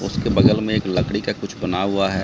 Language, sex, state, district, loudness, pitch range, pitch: Hindi, male, Bihar, Katihar, -20 LUFS, 95-105 Hz, 95 Hz